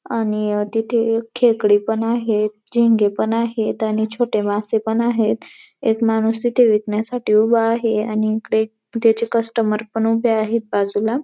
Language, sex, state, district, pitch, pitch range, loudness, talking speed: Marathi, female, Maharashtra, Dhule, 225 Hz, 215-230 Hz, -18 LUFS, 155 wpm